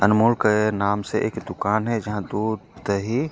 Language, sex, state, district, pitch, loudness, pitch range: Chhattisgarhi, male, Chhattisgarh, Korba, 105 Hz, -23 LUFS, 100-110 Hz